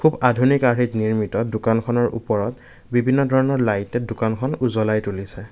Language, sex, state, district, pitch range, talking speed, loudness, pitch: Assamese, male, Assam, Kamrup Metropolitan, 110-125 Hz, 120 wpm, -20 LUFS, 120 Hz